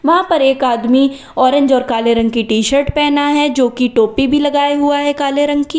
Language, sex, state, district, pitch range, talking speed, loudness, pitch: Hindi, female, Uttar Pradesh, Lalitpur, 250-290 Hz, 230 wpm, -13 LUFS, 275 Hz